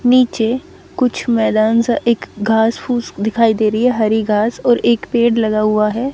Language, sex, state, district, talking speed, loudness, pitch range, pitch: Hindi, female, Haryana, Charkhi Dadri, 185 wpm, -15 LUFS, 215-245 Hz, 230 Hz